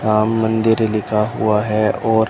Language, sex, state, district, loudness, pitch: Hindi, male, Rajasthan, Bikaner, -17 LUFS, 110 Hz